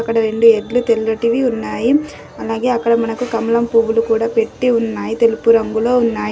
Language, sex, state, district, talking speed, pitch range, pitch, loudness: Telugu, female, Telangana, Adilabad, 150 wpm, 225-235 Hz, 230 Hz, -15 LUFS